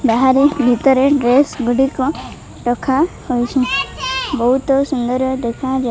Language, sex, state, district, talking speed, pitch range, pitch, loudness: Odia, female, Odisha, Malkangiri, 90 wpm, 245-270 Hz, 260 Hz, -16 LUFS